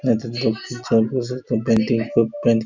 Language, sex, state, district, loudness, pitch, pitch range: Bengali, male, West Bengal, Jhargram, -21 LUFS, 115 Hz, 115-125 Hz